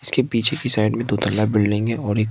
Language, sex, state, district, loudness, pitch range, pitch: Hindi, male, Bihar, Katihar, -18 LUFS, 105-115 Hz, 110 Hz